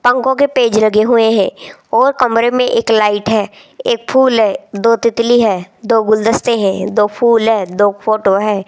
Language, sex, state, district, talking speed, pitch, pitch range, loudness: Hindi, female, Rajasthan, Jaipur, 185 wpm, 225 Hz, 210-240 Hz, -13 LUFS